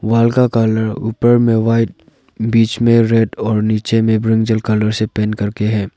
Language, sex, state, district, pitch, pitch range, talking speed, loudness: Hindi, male, Arunachal Pradesh, Lower Dibang Valley, 110 Hz, 110-115 Hz, 180 wpm, -15 LUFS